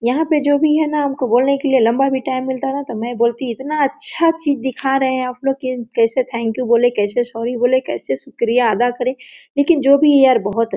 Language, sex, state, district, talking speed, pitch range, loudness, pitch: Hindi, female, Jharkhand, Sahebganj, 230 wpm, 240-280 Hz, -17 LUFS, 260 Hz